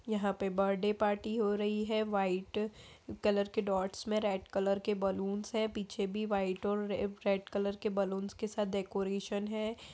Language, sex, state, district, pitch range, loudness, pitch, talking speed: Hindi, female, Bihar, Saharsa, 195-215 Hz, -35 LUFS, 205 Hz, 175 wpm